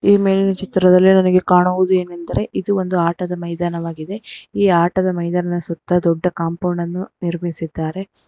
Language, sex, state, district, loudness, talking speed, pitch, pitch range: Kannada, female, Karnataka, Bangalore, -18 LUFS, 125 wpm, 180 Hz, 170-185 Hz